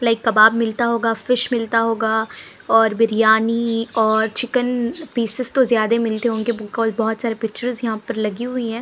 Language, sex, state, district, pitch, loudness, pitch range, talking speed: Hindi, female, Punjab, Pathankot, 230 Hz, -18 LUFS, 220-235 Hz, 170 wpm